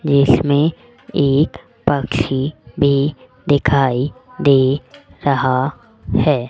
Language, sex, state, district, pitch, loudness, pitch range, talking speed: Hindi, female, Rajasthan, Jaipur, 140 Hz, -17 LUFS, 130-145 Hz, 75 wpm